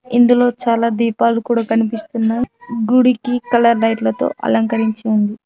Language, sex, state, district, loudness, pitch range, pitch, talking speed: Telugu, female, Telangana, Mahabubabad, -16 LUFS, 225-245 Hz, 230 Hz, 110 wpm